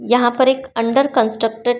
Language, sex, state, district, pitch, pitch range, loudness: Hindi, female, Maharashtra, Chandrapur, 245 Hz, 230-265 Hz, -16 LUFS